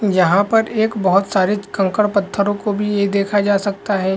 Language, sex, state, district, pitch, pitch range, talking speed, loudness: Hindi, male, Uttarakhand, Uttarkashi, 200 Hz, 195-205 Hz, 185 wpm, -17 LUFS